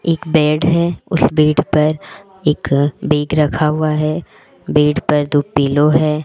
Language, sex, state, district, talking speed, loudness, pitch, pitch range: Hindi, female, Rajasthan, Jaipur, 155 wpm, -15 LUFS, 150 Hz, 150-155 Hz